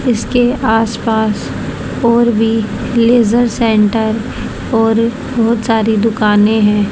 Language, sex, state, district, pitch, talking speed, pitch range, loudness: Hindi, male, Haryana, Charkhi Dadri, 225 Hz, 105 wpm, 220-235 Hz, -13 LUFS